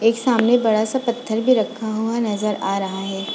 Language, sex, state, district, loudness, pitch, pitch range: Hindi, female, Goa, North and South Goa, -20 LUFS, 220 Hz, 210-235 Hz